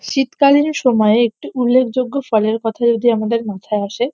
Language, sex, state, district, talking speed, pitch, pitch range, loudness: Bengali, female, West Bengal, North 24 Parganas, 145 wpm, 235 Hz, 215-255 Hz, -16 LUFS